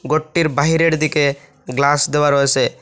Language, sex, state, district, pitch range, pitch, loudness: Bengali, male, Assam, Hailakandi, 140-155 Hz, 145 Hz, -16 LUFS